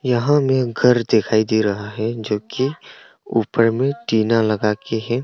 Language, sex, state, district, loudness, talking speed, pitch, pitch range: Hindi, male, Arunachal Pradesh, Longding, -19 LUFS, 160 wpm, 115 Hz, 110-125 Hz